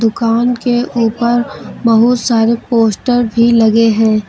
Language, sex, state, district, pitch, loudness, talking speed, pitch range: Hindi, female, Uttar Pradesh, Lucknow, 230 Hz, -12 LUFS, 125 wpm, 225-240 Hz